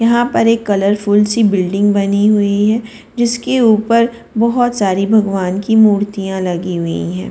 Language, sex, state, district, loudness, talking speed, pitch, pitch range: Hindi, female, Delhi, New Delhi, -14 LUFS, 155 wpm, 210 Hz, 195-230 Hz